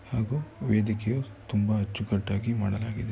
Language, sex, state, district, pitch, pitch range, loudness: Kannada, male, Karnataka, Mysore, 110 Hz, 105-115 Hz, -29 LUFS